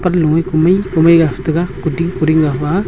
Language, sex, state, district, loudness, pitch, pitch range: Wancho, male, Arunachal Pradesh, Longding, -13 LUFS, 165 Hz, 155-175 Hz